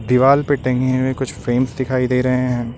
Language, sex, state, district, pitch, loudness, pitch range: Hindi, male, Uttar Pradesh, Lucknow, 130 Hz, -18 LUFS, 125-130 Hz